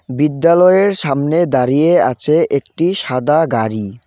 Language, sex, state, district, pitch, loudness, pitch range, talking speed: Bengali, male, West Bengal, Cooch Behar, 150 Hz, -14 LUFS, 125-170 Hz, 105 wpm